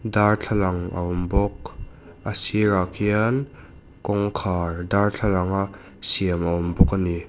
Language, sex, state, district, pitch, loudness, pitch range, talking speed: Mizo, male, Mizoram, Aizawl, 95 Hz, -23 LUFS, 90-105 Hz, 130 wpm